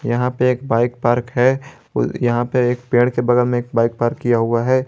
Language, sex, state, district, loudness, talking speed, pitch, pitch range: Hindi, male, Jharkhand, Garhwa, -18 LUFS, 235 wpm, 120 Hz, 120-125 Hz